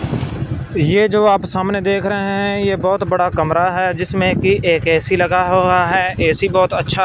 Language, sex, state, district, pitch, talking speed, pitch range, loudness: Hindi, male, Punjab, Fazilka, 185 Hz, 185 wpm, 170-195 Hz, -16 LUFS